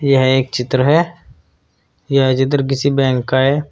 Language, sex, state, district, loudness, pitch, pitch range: Hindi, male, Uttar Pradesh, Saharanpur, -15 LUFS, 130 Hz, 130-140 Hz